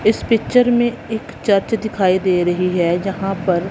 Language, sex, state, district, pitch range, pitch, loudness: Hindi, female, Punjab, Kapurthala, 180-225 Hz, 195 Hz, -17 LUFS